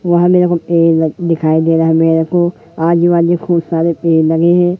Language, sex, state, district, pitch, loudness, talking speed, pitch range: Hindi, female, Madhya Pradesh, Katni, 170 Hz, -12 LUFS, 200 wpm, 165-175 Hz